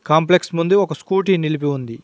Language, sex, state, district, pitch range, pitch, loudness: Telugu, male, Telangana, Mahabubabad, 155-190 Hz, 165 Hz, -18 LUFS